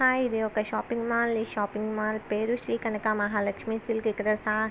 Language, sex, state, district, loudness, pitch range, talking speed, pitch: Telugu, female, Andhra Pradesh, Visakhapatnam, -28 LUFS, 215-230 Hz, 155 wpm, 220 Hz